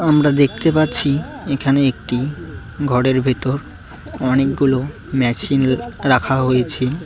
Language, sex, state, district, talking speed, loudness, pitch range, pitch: Bengali, male, West Bengal, Cooch Behar, 95 wpm, -17 LUFS, 125-140 Hz, 130 Hz